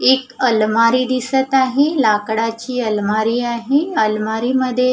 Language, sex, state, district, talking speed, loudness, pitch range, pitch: Marathi, female, Maharashtra, Gondia, 120 wpm, -17 LUFS, 225-260 Hz, 250 Hz